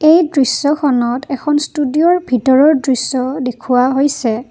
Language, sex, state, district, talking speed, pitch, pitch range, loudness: Assamese, female, Assam, Kamrup Metropolitan, 105 wpm, 270 Hz, 255-295 Hz, -14 LUFS